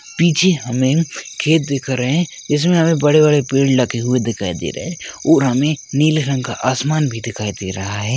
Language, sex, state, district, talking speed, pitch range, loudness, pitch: Hindi, male, Rajasthan, Churu, 205 wpm, 120-155 Hz, -17 LUFS, 135 Hz